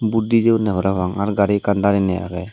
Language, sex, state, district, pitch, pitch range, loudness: Chakma, male, Tripura, Dhalai, 100 Hz, 95-110 Hz, -18 LUFS